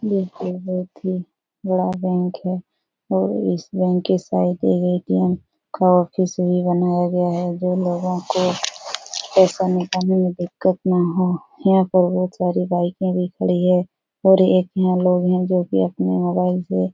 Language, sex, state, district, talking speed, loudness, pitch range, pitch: Hindi, female, Bihar, Supaul, 160 wpm, -20 LUFS, 175-185 Hz, 180 Hz